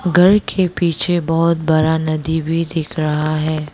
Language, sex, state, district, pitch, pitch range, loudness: Hindi, female, Arunachal Pradesh, Lower Dibang Valley, 160 Hz, 155-170 Hz, -16 LUFS